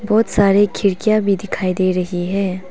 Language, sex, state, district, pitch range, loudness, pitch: Hindi, female, Arunachal Pradesh, Papum Pare, 185-205 Hz, -17 LUFS, 195 Hz